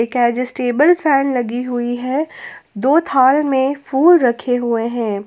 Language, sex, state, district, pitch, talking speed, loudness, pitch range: Hindi, female, Jharkhand, Ranchi, 255 Hz, 135 wpm, -16 LUFS, 240-280 Hz